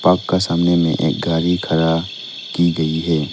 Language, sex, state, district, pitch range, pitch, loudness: Hindi, male, Arunachal Pradesh, Lower Dibang Valley, 80-90 Hz, 85 Hz, -17 LUFS